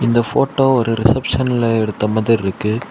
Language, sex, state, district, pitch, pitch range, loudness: Tamil, male, Tamil Nadu, Kanyakumari, 115 Hz, 110-125 Hz, -16 LUFS